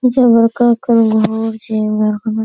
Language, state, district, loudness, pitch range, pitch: Surjapuri, Bihar, Kishanganj, -13 LUFS, 220-235 Hz, 225 Hz